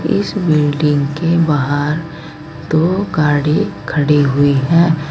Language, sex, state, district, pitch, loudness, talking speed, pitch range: Hindi, female, Uttar Pradesh, Saharanpur, 150 Hz, -15 LUFS, 105 wpm, 145-165 Hz